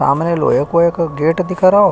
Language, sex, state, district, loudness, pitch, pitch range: Hindi, male, Uttar Pradesh, Hamirpur, -14 LUFS, 170 Hz, 165-185 Hz